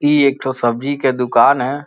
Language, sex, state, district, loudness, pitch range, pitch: Bhojpuri, male, Uttar Pradesh, Gorakhpur, -15 LUFS, 125-140 Hz, 135 Hz